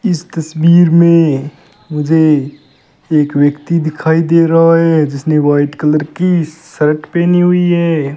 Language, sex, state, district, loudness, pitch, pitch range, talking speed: Hindi, male, Rajasthan, Bikaner, -12 LUFS, 160 Hz, 150-170 Hz, 130 wpm